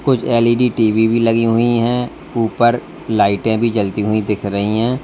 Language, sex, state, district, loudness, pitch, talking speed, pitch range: Hindi, male, Uttar Pradesh, Lalitpur, -16 LUFS, 115 Hz, 180 wpm, 110-120 Hz